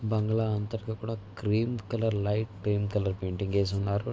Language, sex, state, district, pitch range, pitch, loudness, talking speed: Telugu, male, Andhra Pradesh, Visakhapatnam, 100-110 Hz, 105 Hz, -30 LUFS, 130 wpm